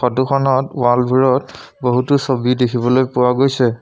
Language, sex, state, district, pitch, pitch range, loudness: Assamese, male, Assam, Sonitpur, 125 Hz, 125-130 Hz, -16 LUFS